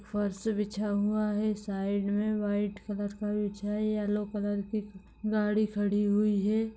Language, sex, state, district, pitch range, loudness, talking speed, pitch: Hindi, female, Bihar, Gopalganj, 205-215 Hz, -31 LUFS, 160 wpm, 210 Hz